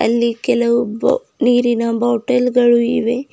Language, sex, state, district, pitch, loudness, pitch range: Kannada, female, Karnataka, Bidar, 240 Hz, -16 LUFS, 235-245 Hz